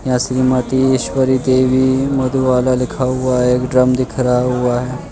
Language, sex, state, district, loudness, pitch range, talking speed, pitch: Hindi, male, Madhya Pradesh, Bhopal, -15 LUFS, 125-130 Hz, 150 wpm, 130 Hz